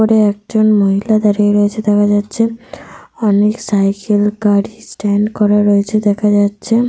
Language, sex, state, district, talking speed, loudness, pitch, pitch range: Bengali, female, Jharkhand, Sahebganj, 130 wpm, -13 LUFS, 210 Hz, 205-215 Hz